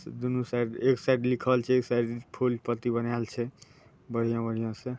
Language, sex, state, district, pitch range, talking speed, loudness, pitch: Maithili, male, Bihar, Saharsa, 120-125 Hz, 180 wpm, -29 LUFS, 120 Hz